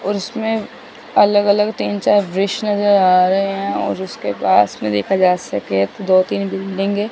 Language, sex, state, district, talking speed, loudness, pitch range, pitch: Hindi, female, Chandigarh, Chandigarh, 195 wpm, -17 LUFS, 185-205 Hz, 195 Hz